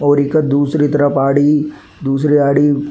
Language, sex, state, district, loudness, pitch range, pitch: Rajasthani, male, Rajasthan, Nagaur, -13 LUFS, 140-150 Hz, 145 Hz